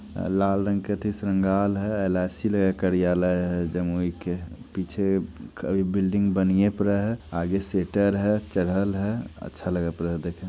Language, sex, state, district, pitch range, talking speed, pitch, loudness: Hindi, male, Bihar, Jamui, 90-100 Hz, 150 wpm, 95 Hz, -25 LUFS